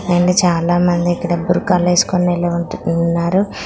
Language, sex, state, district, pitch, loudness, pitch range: Telugu, female, Andhra Pradesh, Srikakulam, 175 Hz, -15 LUFS, 170-180 Hz